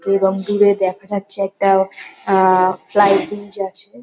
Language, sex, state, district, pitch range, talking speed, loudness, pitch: Bengali, female, West Bengal, North 24 Parganas, 190-205 Hz, 135 wpm, -16 LUFS, 195 Hz